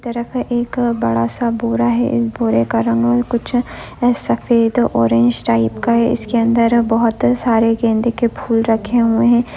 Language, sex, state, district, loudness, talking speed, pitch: Hindi, female, West Bengal, Kolkata, -16 LUFS, 170 wpm, 230 Hz